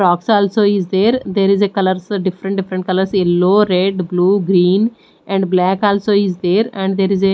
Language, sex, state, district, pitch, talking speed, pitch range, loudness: English, female, Odisha, Nuapada, 195 Hz, 195 wpm, 185-200 Hz, -15 LUFS